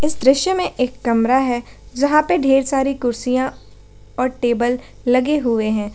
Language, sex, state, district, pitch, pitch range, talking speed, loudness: Hindi, female, Jharkhand, Garhwa, 255 Hz, 240-275 Hz, 160 wpm, -18 LUFS